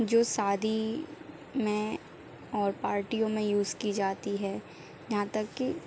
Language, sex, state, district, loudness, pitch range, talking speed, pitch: Hindi, female, Bihar, Araria, -31 LUFS, 205-230 Hz, 145 wpm, 215 Hz